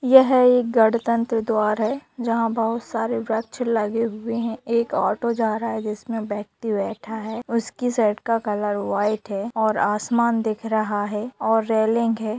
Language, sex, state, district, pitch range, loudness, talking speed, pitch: Hindi, female, Bihar, Sitamarhi, 215-235 Hz, -22 LUFS, 170 wpm, 225 Hz